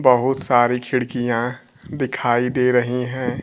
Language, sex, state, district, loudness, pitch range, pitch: Hindi, male, Bihar, Kaimur, -20 LUFS, 120-130 Hz, 125 Hz